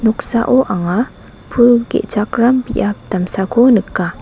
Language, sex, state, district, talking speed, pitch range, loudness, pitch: Garo, female, Meghalaya, West Garo Hills, 100 wpm, 190-240 Hz, -14 LUFS, 230 Hz